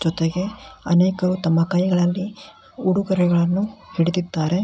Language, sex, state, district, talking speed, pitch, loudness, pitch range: Kannada, male, Karnataka, Belgaum, 80 wpm, 180 Hz, -21 LUFS, 170-190 Hz